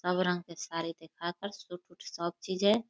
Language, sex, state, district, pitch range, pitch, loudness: Hindi, female, Bihar, Begusarai, 170-185 Hz, 180 Hz, -34 LUFS